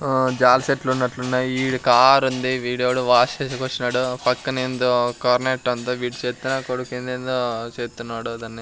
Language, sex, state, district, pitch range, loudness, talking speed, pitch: Telugu, male, Andhra Pradesh, Sri Satya Sai, 125-130 Hz, -21 LUFS, 130 wpm, 125 Hz